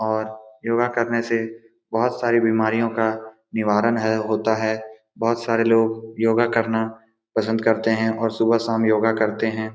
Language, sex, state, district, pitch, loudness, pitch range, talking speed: Hindi, male, Bihar, Saran, 110 Hz, -21 LUFS, 110-115 Hz, 160 wpm